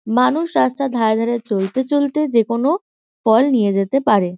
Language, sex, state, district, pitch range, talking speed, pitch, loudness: Bengali, female, West Bengal, Kolkata, 220-280 Hz, 150 wpm, 240 Hz, -17 LUFS